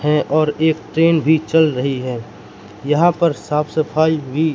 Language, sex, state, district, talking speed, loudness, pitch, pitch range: Hindi, male, Madhya Pradesh, Katni, 170 wpm, -17 LUFS, 155 Hz, 145-160 Hz